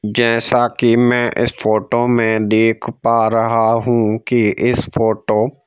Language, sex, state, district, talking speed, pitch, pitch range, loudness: Hindi, male, Madhya Pradesh, Bhopal, 150 wpm, 115 Hz, 110-120 Hz, -15 LUFS